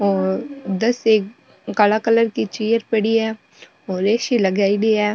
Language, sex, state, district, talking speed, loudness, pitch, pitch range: Marwari, female, Rajasthan, Nagaur, 175 wpm, -19 LUFS, 215 Hz, 200-225 Hz